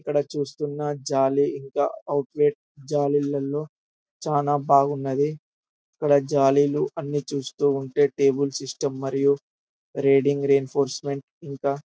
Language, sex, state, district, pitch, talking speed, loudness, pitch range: Telugu, male, Telangana, Karimnagar, 140 Hz, 95 wpm, -24 LUFS, 140-145 Hz